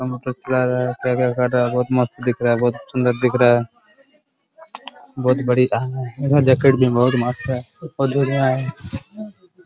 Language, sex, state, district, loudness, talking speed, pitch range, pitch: Hindi, male, Bihar, Araria, -18 LUFS, 225 wpm, 125-140 Hz, 130 Hz